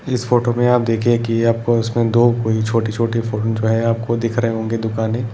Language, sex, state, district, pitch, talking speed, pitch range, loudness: Hindi, male, Uttar Pradesh, Etah, 115 Hz, 215 wpm, 115-120 Hz, -17 LUFS